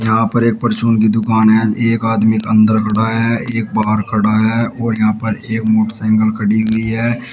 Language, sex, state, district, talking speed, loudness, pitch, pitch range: Hindi, male, Uttar Pradesh, Shamli, 195 wpm, -14 LUFS, 110 Hz, 110-115 Hz